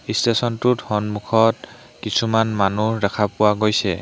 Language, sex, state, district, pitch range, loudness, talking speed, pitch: Assamese, male, Assam, Hailakandi, 105-115 Hz, -19 LUFS, 105 wpm, 110 Hz